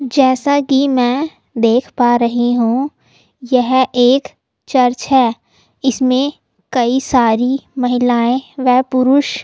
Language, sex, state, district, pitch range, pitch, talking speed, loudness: Hindi, female, Delhi, New Delhi, 245-270 Hz, 255 Hz, 115 wpm, -14 LUFS